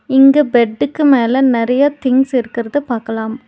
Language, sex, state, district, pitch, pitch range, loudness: Tamil, female, Tamil Nadu, Nilgiris, 255 Hz, 235-270 Hz, -14 LUFS